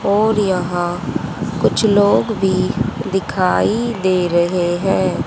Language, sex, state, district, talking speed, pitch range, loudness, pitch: Hindi, female, Haryana, Rohtak, 100 wpm, 180-205 Hz, -17 LUFS, 190 Hz